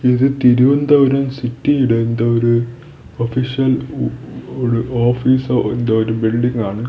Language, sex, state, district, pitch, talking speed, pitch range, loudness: Malayalam, male, Kerala, Thiruvananthapuram, 125 Hz, 115 wpm, 115-130 Hz, -16 LUFS